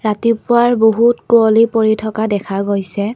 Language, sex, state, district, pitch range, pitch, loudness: Assamese, female, Assam, Kamrup Metropolitan, 210-230 Hz, 220 Hz, -14 LUFS